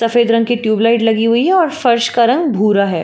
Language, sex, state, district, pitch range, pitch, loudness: Hindi, female, Uttar Pradesh, Jalaun, 225-240 Hz, 235 Hz, -13 LUFS